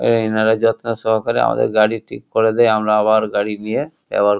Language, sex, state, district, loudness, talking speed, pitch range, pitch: Bengali, male, West Bengal, Kolkata, -17 LUFS, 205 wpm, 105-115 Hz, 110 Hz